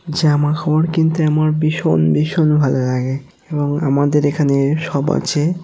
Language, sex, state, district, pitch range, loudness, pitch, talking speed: Bengali, male, West Bengal, North 24 Parganas, 140-155 Hz, -16 LUFS, 150 Hz, 140 wpm